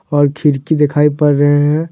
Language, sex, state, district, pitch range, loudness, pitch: Hindi, male, Jharkhand, Deoghar, 145-150 Hz, -13 LUFS, 150 Hz